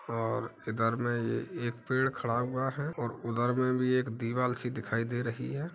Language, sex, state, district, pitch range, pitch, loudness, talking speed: Hindi, male, Uttar Pradesh, Etah, 115-130 Hz, 120 Hz, -32 LUFS, 210 wpm